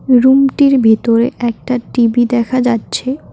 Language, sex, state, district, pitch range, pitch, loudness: Bengali, female, West Bengal, Cooch Behar, 235-260 Hz, 245 Hz, -13 LUFS